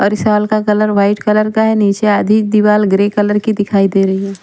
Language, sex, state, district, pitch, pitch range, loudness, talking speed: Hindi, female, Punjab, Pathankot, 210 Hz, 200-215 Hz, -12 LUFS, 270 wpm